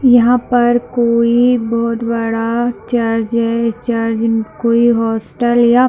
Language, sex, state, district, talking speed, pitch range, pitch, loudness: Hindi, male, Chhattisgarh, Bilaspur, 130 wpm, 230-240 Hz, 235 Hz, -14 LUFS